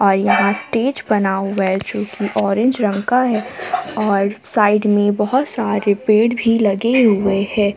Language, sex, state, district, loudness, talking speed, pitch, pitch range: Hindi, female, Jharkhand, Palamu, -17 LUFS, 170 wpm, 210 Hz, 200-230 Hz